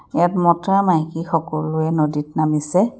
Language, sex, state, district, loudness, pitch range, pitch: Assamese, female, Assam, Kamrup Metropolitan, -19 LUFS, 155-180 Hz, 165 Hz